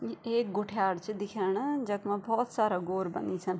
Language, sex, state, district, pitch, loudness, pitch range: Garhwali, female, Uttarakhand, Tehri Garhwal, 205 Hz, -32 LUFS, 190-220 Hz